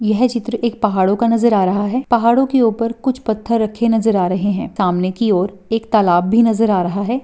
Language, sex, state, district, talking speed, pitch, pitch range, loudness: Hindi, female, Rajasthan, Churu, 240 wpm, 220 Hz, 195-235 Hz, -16 LUFS